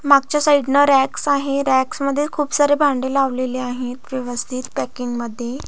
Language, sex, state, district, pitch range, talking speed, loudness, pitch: Marathi, female, Maharashtra, Solapur, 255-285 Hz, 160 wpm, -19 LUFS, 270 Hz